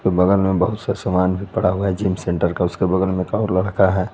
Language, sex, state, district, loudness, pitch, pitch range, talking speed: Hindi, male, Jharkhand, Garhwa, -19 LUFS, 95 Hz, 90-100 Hz, 260 wpm